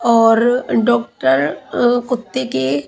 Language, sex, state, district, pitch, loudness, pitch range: Hindi, female, Haryana, Charkhi Dadri, 235 Hz, -16 LUFS, 145-240 Hz